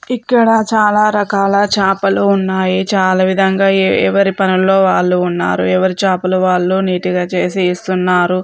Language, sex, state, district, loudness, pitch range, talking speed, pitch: Telugu, female, Telangana, Nalgonda, -13 LUFS, 185-200 Hz, 135 wpm, 190 Hz